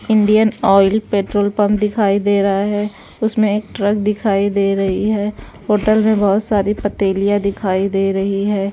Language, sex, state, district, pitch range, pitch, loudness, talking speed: Hindi, female, Bihar, West Champaran, 195-210 Hz, 205 Hz, -16 LUFS, 165 wpm